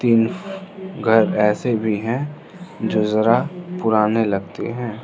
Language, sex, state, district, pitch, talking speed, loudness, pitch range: Hindi, male, Arunachal Pradesh, Lower Dibang Valley, 115 Hz, 120 wpm, -19 LUFS, 110-170 Hz